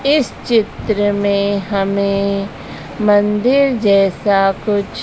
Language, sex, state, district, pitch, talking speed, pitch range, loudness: Hindi, male, Madhya Pradesh, Dhar, 205 Hz, 85 wpm, 200-215 Hz, -15 LUFS